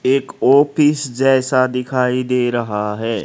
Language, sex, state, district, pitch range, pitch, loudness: Hindi, male, Haryana, Rohtak, 120-135 Hz, 130 Hz, -16 LUFS